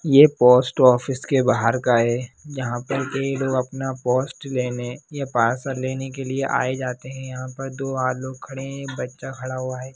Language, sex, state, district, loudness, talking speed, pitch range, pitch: Hindi, male, Bihar, Jahanabad, -22 LUFS, 195 wpm, 125-135 Hz, 130 Hz